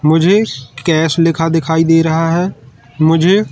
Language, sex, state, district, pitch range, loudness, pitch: Hindi, male, Madhya Pradesh, Katni, 155-165 Hz, -13 LUFS, 165 Hz